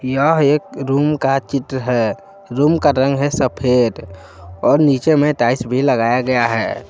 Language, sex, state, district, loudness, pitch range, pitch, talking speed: Hindi, male, Jharkhand, Palamu, -16 LUFS, 120-145 Hz, 135 Hz, 165 wpm